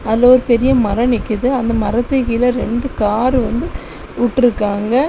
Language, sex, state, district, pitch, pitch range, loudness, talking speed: Tamil, female, Tamil Nadu, Kanyakumari, 240 Hz, 225-255 Hz, -15 LUFS, 140 wpm